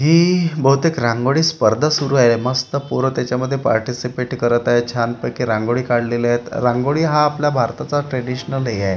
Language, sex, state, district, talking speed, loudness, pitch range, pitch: Marathi, male, Maharashtra, Gondia, 155 wpm, -18 LUFS, 120-145 Hz, 125 Hz